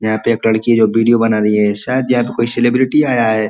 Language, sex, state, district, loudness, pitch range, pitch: Hindi, male, Uttar Pradesh, Ghazipur, -14 LUFS, 110-120 Hz, 115 Hz